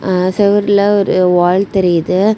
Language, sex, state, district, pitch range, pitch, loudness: Tamil, female, Tamil Nadu, Kanyakumari, 180-200 Hz, 190 Hz, -12 LUFS